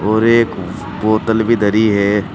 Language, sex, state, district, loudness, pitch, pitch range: Hindi, male, Uttar Pradesh, Saharanpur, -14 LUFS, 110 Hz, 105-110 Hz